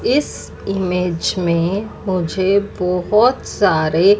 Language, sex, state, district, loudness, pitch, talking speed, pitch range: Hindi, female, Chandigarh, Chandigarh, -17 LUFS, 190 Hz, 85 wpm, 180-205 Hz